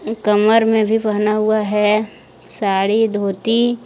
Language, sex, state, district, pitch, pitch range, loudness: Hindi, female, Jharkhand, Deoghar, 215 Hz, 210-225 Hz, -16 LUFS